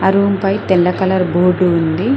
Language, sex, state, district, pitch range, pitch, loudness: Telugu, female, Telangana, Mahabubabad, 180-195 Hz, 190 Hz, -14 LUFS